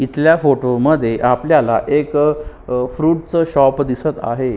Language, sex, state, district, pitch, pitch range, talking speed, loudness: Marathi, male, Maharashtra, Sindhudurg, 145 Hz, 125-155 Hz, 130 wpm, -15 LUFS